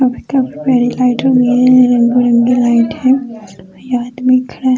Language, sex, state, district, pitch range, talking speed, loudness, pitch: Hindi, female, Jharkhand, Jamtara, 240-255 Hz, 100 wpm, -12 LUFS, 250 Hz